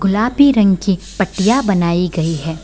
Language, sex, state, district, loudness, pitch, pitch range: Hindi, female, Bihar, Sitamarhi, -15 LUFS, 195 Hz, 175-210 Hz